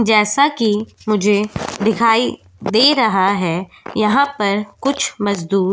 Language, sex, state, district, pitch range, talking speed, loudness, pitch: Hindi, female, Goa, North and South Goa, 195-225 Hz, 125 wpm, -16 LUFS, 210 Hz